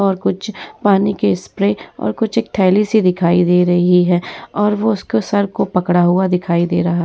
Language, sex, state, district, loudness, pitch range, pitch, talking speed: Hindi, female, Bihar, Vaishali, -15 LUFS, 175-205 Hz, 190 Hz, 210 wpm